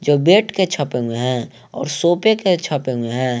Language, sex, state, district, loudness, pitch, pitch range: Hindi, male, Jharkhand, Garhwa, -18 LUFS, 145 Hz, 125-185 Hz